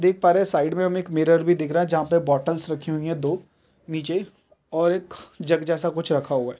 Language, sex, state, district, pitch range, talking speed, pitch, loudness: Hindi, male, Bihar, Jamui, 160-180 Hz, 265 wpm, 165 Hz, -23 LUFS